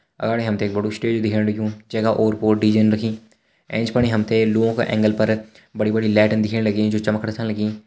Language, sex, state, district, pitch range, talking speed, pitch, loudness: Hindi, male, Uttarakhand, Uttarkashi, 105-110 Hz, 200 wpm, 110 Hz, -20 LUFS